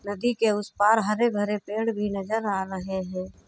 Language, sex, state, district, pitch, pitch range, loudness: Hindi, female, Uttar Pradesh, Budaun, 210 Hz, 195-220 Hz, -26 LUFS